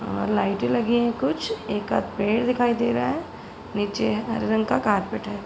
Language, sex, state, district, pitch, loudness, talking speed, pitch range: Hindi, female, Uttar Pradesh, Hamirpur, 235 Hz, -24 LUFS, 185 wpm, 220-240 Hz